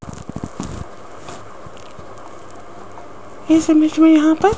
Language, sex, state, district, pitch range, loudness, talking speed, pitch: Hindi, female, Rajasthan, Jaipur, 315-320 Hz, -13 LUFS, 65 wpm, 320 Hz